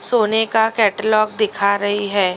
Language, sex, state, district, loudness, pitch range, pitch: Hindi, female, Delhi, New Delhi, -16 LUFS, 205-220 Hz, 215 Hz